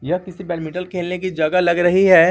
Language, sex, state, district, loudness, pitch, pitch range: Hindi, male, Jharkhand, Garhwa, -18 LUFS, 180 Hz, 170-185 Hz